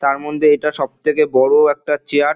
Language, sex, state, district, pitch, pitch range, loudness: Bengali, male, West Bengal, Dakshin Dinajpur, 150 Hz, 140-150 Hz, -15 LUFS